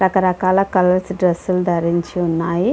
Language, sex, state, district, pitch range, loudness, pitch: Telugu, female, Andhra Pradesh, Visakhapatnam, 175-185 Hz, -17 LUFS, 180 Hz